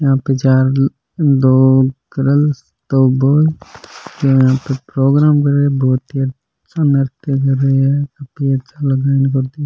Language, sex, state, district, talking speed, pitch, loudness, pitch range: Rajasthani, male, Rajasthan, Churu, 70 wpm, 135 Hz, -14 LUFS, 135-145 Hz